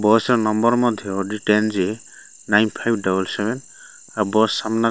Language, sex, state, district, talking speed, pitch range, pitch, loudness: Odia, male, Odisha, Malkangiri, 185 wpm, 105-115 Hz, 110 Hz, -20 LUFS